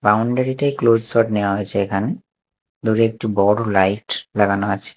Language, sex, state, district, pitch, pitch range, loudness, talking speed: Bengali, male, Chhattisgarh, Raipur, 105 Hz, 100-115 Hz, -19 LUFS, 155 wpm